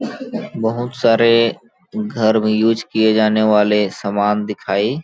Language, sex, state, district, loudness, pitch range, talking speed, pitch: Hindi, male, Chhattisgarh, Balrampur, -16 LUFS, 105-115 Hz, 130 wpm, 110 Hz